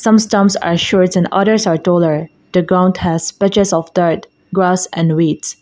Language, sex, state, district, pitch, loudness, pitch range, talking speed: English, female, Mizoram, Aizawl, 180 Hz, -14 LUFS, 165-195 Hz, 150 wpm